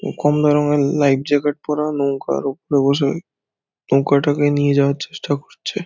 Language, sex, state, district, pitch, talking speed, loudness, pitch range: Bengali, male, West Bengal, Dakshin Dinajpur, 145 Hz, 135 wpm, -18 LUFS, 140-150 Hz